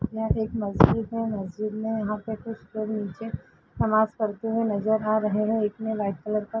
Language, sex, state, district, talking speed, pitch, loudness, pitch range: Hindi, female, Uttar Pradesh, Jalaun, 220 wpm, 215 Hz, -26 LUFS, 210-220 Hz